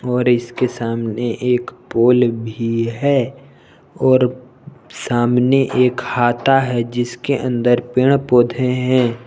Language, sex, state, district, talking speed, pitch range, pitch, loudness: Hindi, male, Jharkhand, Palamu, 110 wpm, 120-130 Hz, 125 Hz, -17 LUFS